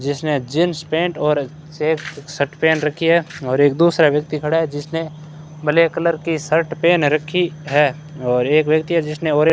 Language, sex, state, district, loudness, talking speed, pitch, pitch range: Hindi, male, Rajasthan, Bikaner, -18 LUFS, 190 wpm, 155 Hz, 150-165 Hz